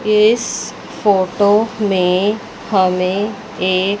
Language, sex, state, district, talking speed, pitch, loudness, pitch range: Hindi, female, Chandigarh, Chandigarh, 75 wpm, 205 Hz, -16 LUFS, 185-215 Hz